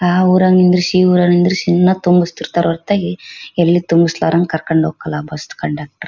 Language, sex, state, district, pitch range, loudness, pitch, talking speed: Kannada, female, Karnataka, Bellary, 165-185 Hz, -14 LUFS, 175 Hz, 160 wpm